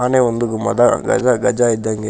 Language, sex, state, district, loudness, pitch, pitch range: Kannada, male, Karnataka, Shimoga, -16 LUFS, 120 Hz, 110-125 Hz